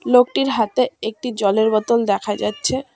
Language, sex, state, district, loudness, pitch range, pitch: Bengali, female, West Bengal, Cooch Behar, -19 LUFS, 215-250 Hz, 225 Hz